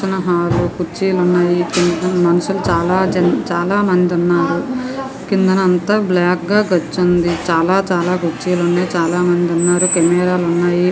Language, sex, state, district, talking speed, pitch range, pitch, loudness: Telugu, female, Andhra Pradesh, Visakhapatnam, 135 wpm, 175-185 Hz, 180 Hz, -15 LUFS